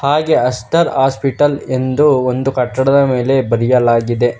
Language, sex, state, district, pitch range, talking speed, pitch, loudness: Kannada, male, Karnataka, Bangalore, 125-140 Hz, 110 wpm, 130 Hz, -14 LUFS